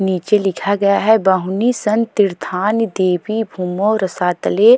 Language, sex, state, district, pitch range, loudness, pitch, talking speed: Hindi, female, Uttarakhand, Tehri Garhwal, 185-220 Hz, -16 LUFS, 200 Hz, 125 wpm